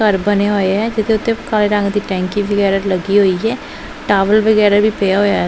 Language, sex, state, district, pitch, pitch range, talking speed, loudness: Punjabi, female, Punjab, Pathankot, 205 Hz, 195-215 Hz, 210 wpm, -14 LUFS